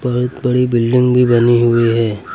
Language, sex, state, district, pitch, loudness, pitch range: Hindi, male, Uttar Pradesh, Lucknow, 120 Hz, -13 LUFS, 115-125 Hz